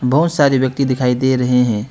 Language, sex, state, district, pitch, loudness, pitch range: Hindi, male, West Bengal, Alipurduar, 130 Hz, -15 LUFS, 125-135 Hz